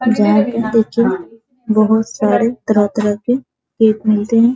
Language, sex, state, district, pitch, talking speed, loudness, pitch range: Hindi, female, Bihar, Sitamarhi, 225 Hz, 130 wpm, -15 LUFS, 215-235 Hz